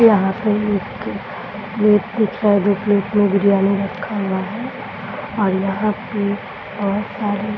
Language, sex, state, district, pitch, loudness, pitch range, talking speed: Hindi, female, Bihar, Samastipur, 205 Hz, -19 LUFS, 200-210 Hz, 150 wpm